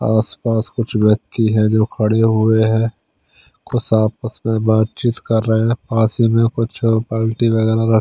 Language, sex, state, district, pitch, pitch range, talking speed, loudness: Hindi, male, Chandigarh, Chandigarh, 110 Hz, 110-115 Hz, 170 wpm, -16 LUFS